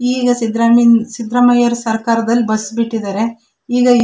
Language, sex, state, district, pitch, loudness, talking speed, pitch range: Kannada, female, Karnataka, Shimoga, 230 Hz, -14 LUFS, 120 wpm, 225-245 Hz